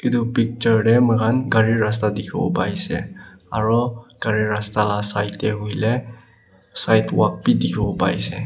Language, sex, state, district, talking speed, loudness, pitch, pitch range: Nagamese, male, Nagaland, Kohima, 155 wpm, -20 LUFS, 110 Hz, 105-120 Hz